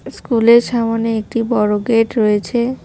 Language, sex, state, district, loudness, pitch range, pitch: Bengali, female, West Bengal, Cooch Behar, -15 LUFS, 220-235 Hz, 230 Hz